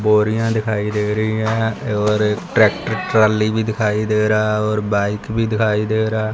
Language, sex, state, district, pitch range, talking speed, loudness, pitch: Hindi, male, Punjab, Fazilka, 105-110 Hz, 200 wpm, -18 LUFS, 110 Hz